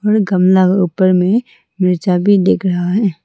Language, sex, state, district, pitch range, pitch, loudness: Hindi, female, Arunachal Pradesh, Longding, 180-200 Hz, 185 Hz, -13 LUFS